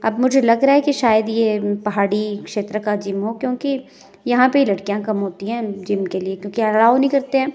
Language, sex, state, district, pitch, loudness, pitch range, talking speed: Hindi, female, Himachal Pradesh, Shimla, 220 Hz, -18 LUFS, 205-255 Hz, 225 wpm